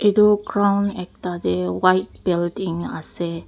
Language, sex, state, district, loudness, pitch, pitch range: Nagamese, female, Nagaland, Dimapur, -21 LUFS, 185 Hz, 170-200 Hz